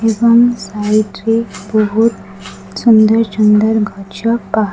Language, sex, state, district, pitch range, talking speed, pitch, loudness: Odia, female, Odisha, Khordha, 205-225 Hz, 115 wpm, 215 Hz, -13 LUFS